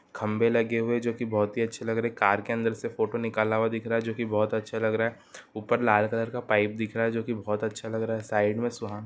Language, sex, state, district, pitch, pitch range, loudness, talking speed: Hindi, male, Uttarakhand, Uttarkashi, 115 Hz, 110-115 Hz, -27 LUFS, 320 wpm